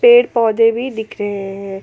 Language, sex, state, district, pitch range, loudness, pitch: Hindi, female, Jharkhand, Palamu, 200-240 Hz, -16 LUFS, 220 Hz